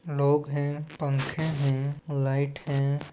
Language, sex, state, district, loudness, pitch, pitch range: Chhattisgarhi, male, Chhattisgarh, Balrampur, -28 LUFS, 145 Hz, 140-150 Hz